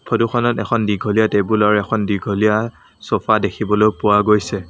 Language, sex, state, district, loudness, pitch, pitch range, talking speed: Assamese, male, Assam, Sonitpur, -17 LUFS, 105 Hz, 105-110 Hz, 130 wpm